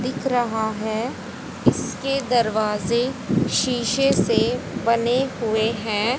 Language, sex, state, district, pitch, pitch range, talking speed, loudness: Hindi, female, Haryana, Rohtak, 235 Hz, 220-250 Hz, 95 wpm, -22 LUFS